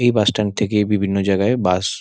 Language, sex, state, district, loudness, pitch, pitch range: Bengali, male, West Bengal, Dakshin Dinajpur, -18 LUFS, 105 Hz, 100-105 Hz